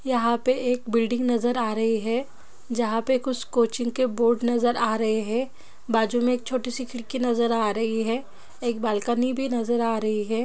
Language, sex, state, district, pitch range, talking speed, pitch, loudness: Hindi, female, Bihar, Jahanabad, 225-245 Hz, 200 wpm, 235 Hz, -25 LUFS